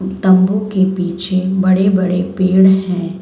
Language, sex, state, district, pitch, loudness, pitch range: Hindi, female, Chhattisgarh, Bilaspur, 185 Hz, -14 LUFS, 185-190 Hz